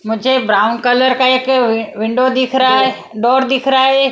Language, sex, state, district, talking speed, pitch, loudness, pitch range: Hindi, female, Punjab, Kapurthala, 205 wpm, 255 Hz, -13 LUFS, 230-260 Hz